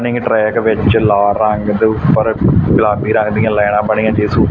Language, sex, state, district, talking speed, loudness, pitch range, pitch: Punjabi, male, Punjab, Fazilka, 200 wpm, -13 LUFS, 105-110 Hz, 110 Hz